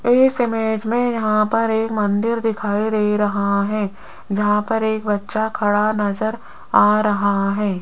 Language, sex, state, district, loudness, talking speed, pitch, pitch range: Hindi, female, Rajasthan, Jaipur, -19 LUFS, 155 wpm, 215 Hz, 205-225 Hz